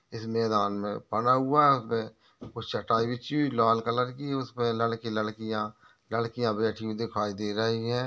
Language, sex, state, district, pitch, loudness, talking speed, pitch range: Hindi, male, Maharashtra, Aurangabad, 115 Hz, -28 LUFS, 180 wpm, 110-125 Hz